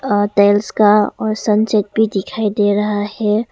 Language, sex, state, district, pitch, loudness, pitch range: Hindi, female, Arunachal Pradesh, Longding, 210 Hz, -15 LUFS, 205-215 Hz